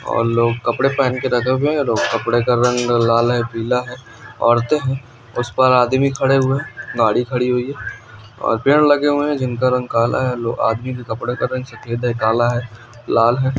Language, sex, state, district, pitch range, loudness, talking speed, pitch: Hindi, male, Andhra Pradesh, Anantapur, 120-130 Hz, -17 LUFS, 155 wpm, 125 Hz